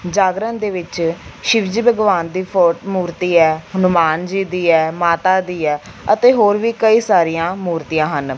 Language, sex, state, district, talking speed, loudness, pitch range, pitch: Punjabi, female, Punjab, Fazilka, 170 wpm, -16 LUFS, 165-200 Hz, 180 Hz